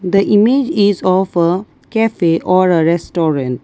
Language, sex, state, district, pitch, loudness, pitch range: English, female, Assam, Kamrup Metropolitan, 185 Hz, -14 LUFS, 170-205 Hz